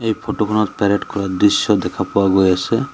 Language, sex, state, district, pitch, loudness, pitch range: Assamese, male, Assam, Sonitpur, 100 Hz, -17 LUFS, 95-105 Hz